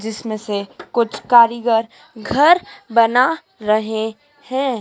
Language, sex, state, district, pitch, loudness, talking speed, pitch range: Hindi, female, Madhya Pradesh, Dhar, 230 Hz, -17 LUFS, 100 wpm, 220-255 Hz